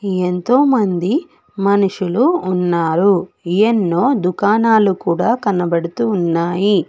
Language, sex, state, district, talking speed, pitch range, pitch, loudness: Telugu, female, Telangana, Hyderabad, 80 wpm, 180-220 Hz, 195 Hz, -16 LUFS